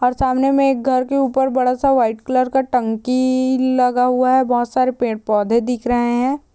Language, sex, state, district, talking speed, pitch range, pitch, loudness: Hindi, female, Uttar Pradesh, Hamirpur, 210 wpm, 245-260 Hz, 255 Hz, -17 LUFS